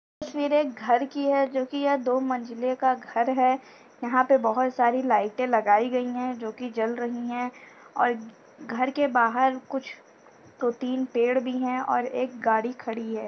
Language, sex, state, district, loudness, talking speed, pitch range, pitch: Hindi, female, Uttar Pradesh, Etah, -26 LUFS, 175 wpm, 240-260 Hz, 255 Hz